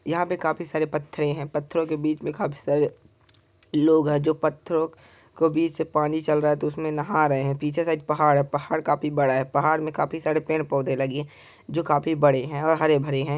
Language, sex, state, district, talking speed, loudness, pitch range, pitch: Hindi, male, Chhattisgarh, Jashpur, 235 wpm, -24 LUFS, 145-160 Hz, 150 Hz